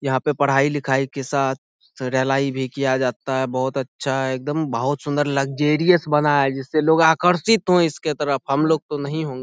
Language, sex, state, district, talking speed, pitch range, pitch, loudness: Hindi, male, Bihar, Saharsa, 195 wpm, 135-155 Hz, 140 Hz, -20 LUFS